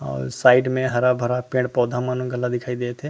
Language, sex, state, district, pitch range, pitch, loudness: Chhattisgarhi, male, Chhattisgarh, Rajnandgaon, 120-125 Hz, 125 Hz, -21 LUFS